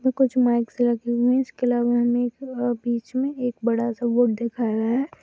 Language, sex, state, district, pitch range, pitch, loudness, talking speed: Hindi, female, Bihar, Saharsa, 235-250 Hz, 240 Hz, -23 LUFS, 220 wpm